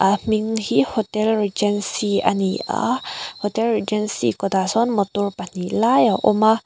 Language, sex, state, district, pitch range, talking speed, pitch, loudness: Mizo, female, Mizoram, Aizawl, 200-220 Hz, 160 wpm, 210 Hz, -20 LUFS